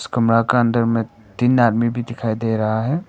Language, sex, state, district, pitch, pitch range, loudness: Hindi, male, Arunachal Pradesh, Papum Pare, 115 Hz, 115-120 Hz, -18 LUFS